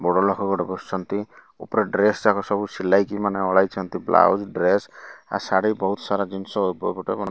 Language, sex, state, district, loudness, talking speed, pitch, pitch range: Odia, male, Odisha, Malkangiri, -22 LUFS, 180 wpm, 100 Hz, 95-100 Hz